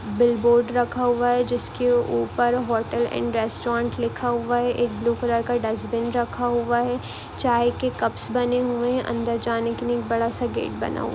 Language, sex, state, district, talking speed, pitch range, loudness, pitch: Hindi, female, Rajasthan, Nagaur, 185 wpm, 230-245 Hz, -23 LUFS, 240 Hz